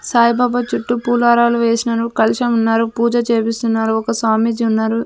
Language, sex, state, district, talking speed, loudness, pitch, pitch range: Telugu, female, Andhra Pradesh, Sri Satya Sai, 130 wpm, -16 LUFS, 230 Hz, 225-235 Hz